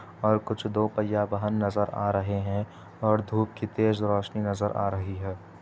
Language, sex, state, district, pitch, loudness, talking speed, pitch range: Hindi, male, Uttar Pradesh, Etah, 105 Hz, -28 LUFS, 205 wpm, 100-110 Hz